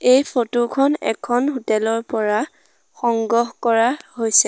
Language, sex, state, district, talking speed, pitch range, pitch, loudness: Assamese, female, Assam, Sonitpur, 135 wpm, 225-255 Hz, 235 Hz, -19 LUFS